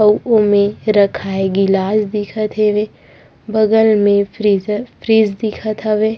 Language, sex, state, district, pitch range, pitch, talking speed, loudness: Chhattisgarhi, female, Chhattisgarh, Rajnandgaon, 200-215 Hz, 210 Hz, 115 wpm, -15 LUFS